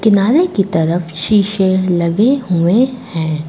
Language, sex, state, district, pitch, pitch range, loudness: Hindi, female, Uttar Pradesh, Lucknow, 190 Hz, 170-220 Hz, -14 LUFS